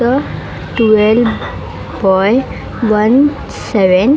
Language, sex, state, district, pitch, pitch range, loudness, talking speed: Marathi, female, Maharashtra, Mumbai Suburban, 225 Hz, 210-255 Hz, -13 LUFS, 85 wpm